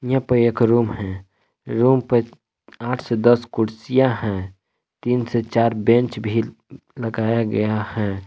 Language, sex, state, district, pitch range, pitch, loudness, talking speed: Hindi, male, Jharkhand, Palamu, 110-120 Hz, 115 Hz, -20 LUFS, 145 wpm